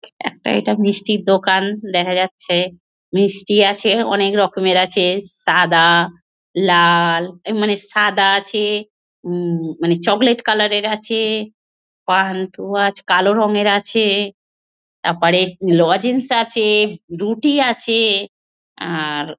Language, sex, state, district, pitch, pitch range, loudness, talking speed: Bengali, female, West Bengal, North 24 Parganas, 195 Hz, 175-210 Hz, -16 LUFS, 105 wpm